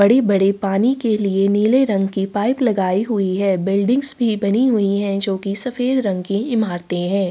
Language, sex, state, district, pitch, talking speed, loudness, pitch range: Hindi, female, Uttar Pradesh, Jalaun, 200 Hz, 195 wpm, -18 LUFS, 195-235 Hz